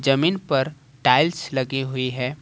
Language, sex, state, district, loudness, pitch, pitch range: Hindi, male, Jharkhand, Ranchi, -22 LUFS, 135 Hz, 130-150 Hz